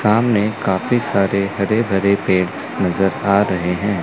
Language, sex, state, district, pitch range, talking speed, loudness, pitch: Hindi, male, Chandigarh, Chandigarh, 95-105 Hz, 150 wpm, -17 LUFS, 100 Hz